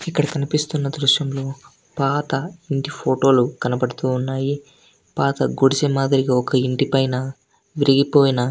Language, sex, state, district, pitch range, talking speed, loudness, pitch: Telugu, male, Andhra Pradesh, Anantapur, 130-145 Hz, 90 wpm, -20 LUFS, 135 Hz